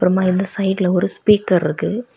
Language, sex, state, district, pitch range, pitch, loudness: Tamil, female, Tamil Nadu, Kanyakumari, 180-200 Hz, 190 Hz, -17 LUFS